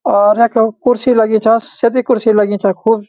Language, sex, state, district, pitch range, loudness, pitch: Garhwali, male, Uttarakhand, Uttarkashi, 215-235 Hz, -12 LUFS, 225 Hz